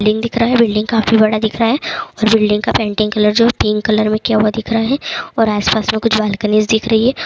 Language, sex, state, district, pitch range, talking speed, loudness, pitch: Hindi, male, Bihar, Begusarai, 215-230 Hz, 275 wpm, -14 LUFS, 220 Hz